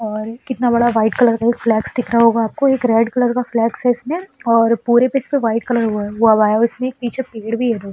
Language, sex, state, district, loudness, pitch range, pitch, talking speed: Hindi, female, Uttar Pradesh, Etah, -16 LUFS, 225-245 Hz, 235 Hz, 265 wpm